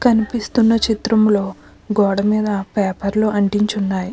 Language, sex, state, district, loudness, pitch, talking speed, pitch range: Telugu, female, Andhra Pradesh, Krishna, -17 LUFS, 210 Hz, 100 wpm, 200-220 Hz